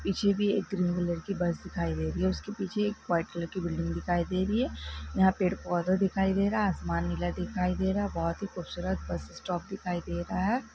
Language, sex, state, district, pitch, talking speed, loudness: Hindi, female, Karnataka, Belgaum, 180 Hz, 240 wpm, -30 LUFS